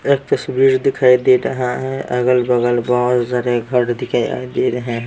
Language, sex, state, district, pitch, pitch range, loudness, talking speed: Hindi, male, Bihar, Patna, 125 Hz, 125-130 Hz, -16 LUFS, 190 wpm